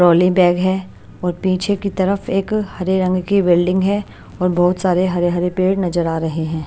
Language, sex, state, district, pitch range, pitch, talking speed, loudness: Hindi, female, Maharashtra, Washim, 175-190 Hz, 185 Hz, 205 wpm, -17 LUFS